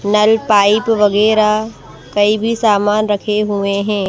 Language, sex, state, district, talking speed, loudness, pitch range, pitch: Hindi, female, Madhya Pradesh, Bhopal, 130 wpm, -14 LUFS, 205-215 Hz, 210 Hz